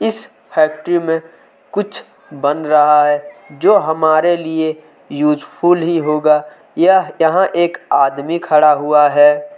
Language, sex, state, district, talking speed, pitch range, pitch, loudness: Hindi, male, Chhattisgarh, Kabirdham, 120 wpm, 150-175 Hz, 155 Hz, -14 LUFS